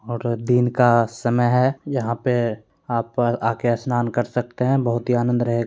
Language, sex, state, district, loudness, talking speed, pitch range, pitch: Hindi, male, Bihar, Begusarai, -21 LUFS, 190 wpm, 120-125 Hz, 120 Hz